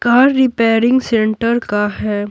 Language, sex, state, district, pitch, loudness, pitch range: Hindi, female, Bihar, Patna, 230 Hz, -14 LUFS, 215-245 Hz